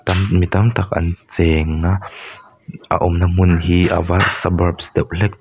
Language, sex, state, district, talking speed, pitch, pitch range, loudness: Mizo, male, Mizoram, Aizawl, 145 wpm, 90 Hz, 85-95 Hz, -17 LUFS